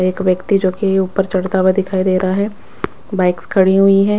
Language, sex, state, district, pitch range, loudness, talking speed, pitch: Hindi, female, Bihar, West Champaran, 185-195 Hz, -15 LUFS, 215 wpm, 190 Hz